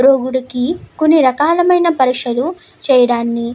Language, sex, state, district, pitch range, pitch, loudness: Telugu, female, Andhra Pradesh, Krishna, 250-315 Hz, 260 Hz, -14 LUFS